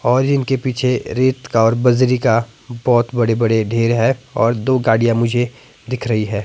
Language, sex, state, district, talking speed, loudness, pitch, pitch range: Hindi, male, Himachal Pradesh, Shimla, 185 wpm, -16 LUFS, 120 Hz, 115-130 Hz